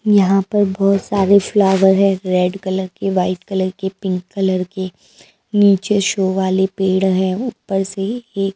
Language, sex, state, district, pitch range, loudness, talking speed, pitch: Hindi, female, Maharashtra, Mumbai Suburban, 190-200 Hz, -17 LUFS, 170 wpm, 195 Hz